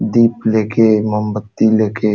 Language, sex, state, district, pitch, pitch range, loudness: Hindi, male, Uttar Pradesh, Jalaun, 110 Hz, 105-110 Hz, -15 LUFS